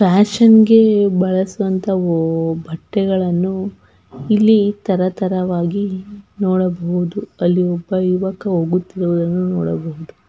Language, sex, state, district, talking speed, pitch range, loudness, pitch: Kannada, female, Karnataka, Belgaum, 75 wpm, 175-200 Hz, -16 LUFS, 185 Hz